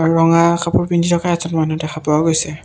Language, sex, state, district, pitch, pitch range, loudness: Assamese, male, Assam, Kamrup Metropolitan, 165 Hz, 155-170 Hz, -16 LUFS